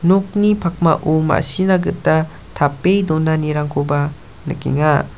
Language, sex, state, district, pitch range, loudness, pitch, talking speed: Garo, male, Meghalaya, South Garo Hills, 150-185 Hz, -16 LUFS, 160 Hz, 80 wpm